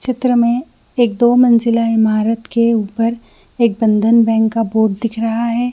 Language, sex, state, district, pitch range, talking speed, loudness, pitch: Hindi, female, Jharkhand, Jamtara, 225-235 Hz, 165 wpm, -14 LUFS, 230 Hz